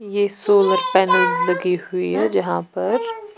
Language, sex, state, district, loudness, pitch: Hindi, female, Punjab, Pathankot, -18 LUFS, 205 Hz